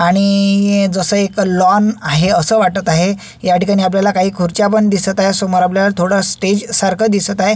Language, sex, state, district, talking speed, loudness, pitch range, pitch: Marathi, male, Maharashtra, Solapur, 175 wpm, -13 LUFS, 185-200 Hz, 195 Hz